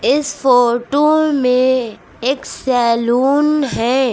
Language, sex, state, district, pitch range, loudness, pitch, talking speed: Hindi, female, Uttar Pradesh, Lucknow, 245-285 Hz, -15 LUFS, 260 Hz, 85 wpm